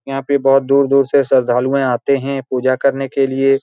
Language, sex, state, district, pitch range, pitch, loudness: Hindi, male, Bihar, Saran, 135-140 Hz, 135 Hz, -15 LUFS